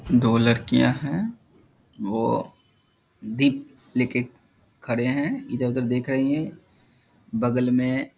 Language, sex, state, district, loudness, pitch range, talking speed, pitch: Hindi, male, Bihar, Jahanabad, -24 LUFS, 120-145 Hz, 110 wpm, 125 Hz